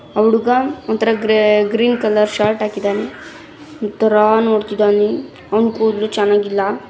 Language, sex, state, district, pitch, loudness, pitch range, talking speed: Kannada, female, Karnataka, Raichur, 215 Hz, -15 LUFS, 210-225 Hz, 95 wpm